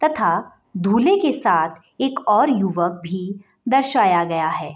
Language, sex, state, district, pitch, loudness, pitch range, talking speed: Hindi, female, Bihar, Bhagalpur, 195 Hz, -19 LUFS, 175-270 Hz, 140 wpm